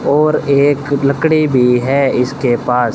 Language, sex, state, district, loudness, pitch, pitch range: Hindi, male, Rajasthan, Bikaner, -13 LUFS, 140 Hz, 125-145 Hz